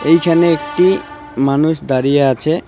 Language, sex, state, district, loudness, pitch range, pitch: Bengali, male, West Bengal, Alipurduar, -14 LUFS, 140-170 Hz, 160 Hz